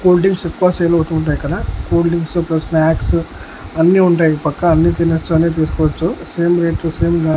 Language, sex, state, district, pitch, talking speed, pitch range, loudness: Telugu, male, Andhra Pradesh, Annamaya, 165 Hz, 195 wpm, 160-170 Hz, -15 LUFS